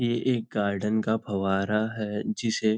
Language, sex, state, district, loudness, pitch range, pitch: Hindi, male, Maharashtra, Nagpur, -27 LUFS, 105-110 Hz, 110 Hz